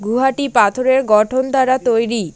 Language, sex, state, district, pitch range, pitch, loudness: Bengali, female, West Bengal, Alipurduar, 220-260 Hz, 255 Hz, -15 LUFS